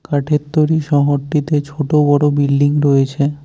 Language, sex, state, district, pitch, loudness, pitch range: Bengali, male, West Bengal, Cooch Behar, 145 Hz, -15 LUFS, 145-150 Hz